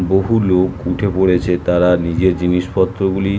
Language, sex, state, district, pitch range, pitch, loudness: Bengali, male, West Bengal, North 24 Parganas, 90-95 Hz, 90 Hz, -16 LUFS